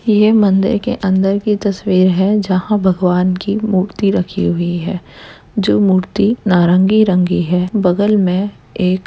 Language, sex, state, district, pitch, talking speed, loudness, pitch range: Hindi, female, Bihar, Gaya, 190 Hz, 160 wpm, -14 LUFS, 180-205 Hz